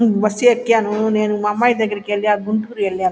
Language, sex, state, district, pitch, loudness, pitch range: Telugu, female, Andhra Pradesh, Guntur, 215 Hz, -17 LUFS, 210-225 Hz